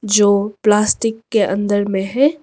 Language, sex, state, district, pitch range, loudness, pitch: Hindi, female, Arunachal Pradesh, Lower Dibang Valley, 205-225 Hz, -16 LUFS, 210 Hz